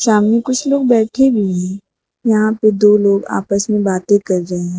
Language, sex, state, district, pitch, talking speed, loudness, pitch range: Hindi, female, Uttar Pradesh, Lucknow, 210 Hz, 200 wpm, -14 LUFS, 195-225 Hz